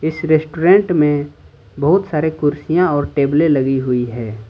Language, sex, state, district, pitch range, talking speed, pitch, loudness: Hindi, male, Jharkhand, Ranchi, 135-160 Hz, 145 wpm, 150 Hz, -16 LUFS